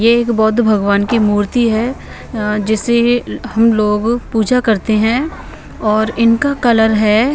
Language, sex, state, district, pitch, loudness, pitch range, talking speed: Hindi, female, Bihar, Patna, 225 Hz, -14 LUFS, 215-235 Hz, 155 wpm